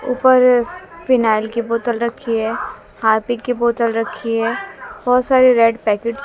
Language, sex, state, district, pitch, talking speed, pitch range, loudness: Hindi, female, Haryana, Jhajjar, 235 Hz, 155 wpm, 230-255 Hz, -17 LUFS